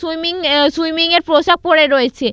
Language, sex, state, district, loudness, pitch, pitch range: Bengali, female, West Bengal, Paschim Medinipur, -13 LUFS, 320 Hz, 290-335 Hz